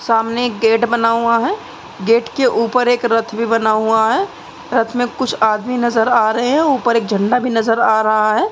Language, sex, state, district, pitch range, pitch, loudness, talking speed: Hindi, female, Uttar Pradesh, Muzaffarnagar, 225-245 Hz, 230 Hz, -15 LUFS, 220 wpm